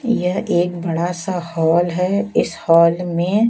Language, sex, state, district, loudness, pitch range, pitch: Hindi, female, Chhattisgarh, Raipur, -18 LUFS, 170-185 Hz, 175 Hz